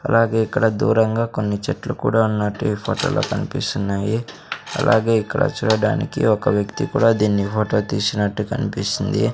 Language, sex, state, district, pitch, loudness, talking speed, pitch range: Telugu, male, Andhra Pradesh, Sri Satya Sai, 110 Hz, -20 LUFS, 130 wpm, 105-130 Hz